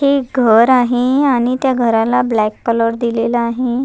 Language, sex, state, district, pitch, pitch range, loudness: Marathi, female, Maharashtra, Nagpur, 245 Hz, 230-255 Hz, -14 LUFS